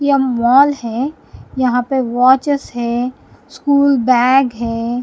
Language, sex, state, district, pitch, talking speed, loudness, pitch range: Hindi, female, Punjab, Kapurthala, 255 Hz, 120 wpm, -15 LUFS, 240-275 Hz